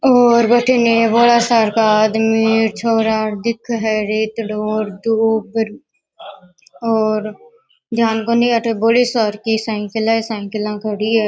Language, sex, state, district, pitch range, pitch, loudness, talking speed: Rajasthani, female, Rajasthan, Nagaur, 215-230 Hz, 225 Hz, -16 LUFS, 120 wpm